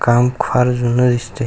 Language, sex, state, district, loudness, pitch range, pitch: Marathi, male, Maharashtra, Aurangabad, -15 LUFS, 120-125 Hz, 125 Hz